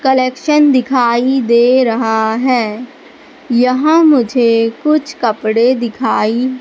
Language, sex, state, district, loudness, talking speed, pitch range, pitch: Hindi, female, Madhya Pradesh, Katni, -12 LUFS, 90 wpm, 235-270 Hz, 255 Hz